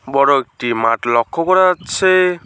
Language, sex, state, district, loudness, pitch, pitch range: Bengali, male, West Bengal, Alipurduar, -15 LUFS, 140 Hz, 120-180 Hz